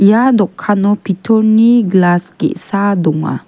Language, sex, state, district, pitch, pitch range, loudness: Garo, female, Meghalaya, West Garo Hills, 205 Hz, 185-220 Hz, -12 LUFS